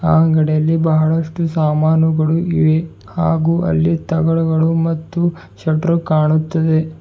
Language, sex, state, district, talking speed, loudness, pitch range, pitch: Kannada, male, Karnataka, Bidar, 95 wpm, -16 LUFS, 160-165 Hz, 160 Hz